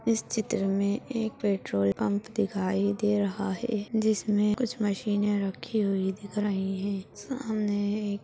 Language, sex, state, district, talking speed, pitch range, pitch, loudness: Hindi, female, Chhattisgarh, Bastar, 155 wpm, 195-220 Hz, 205 Hz, -29 LUFS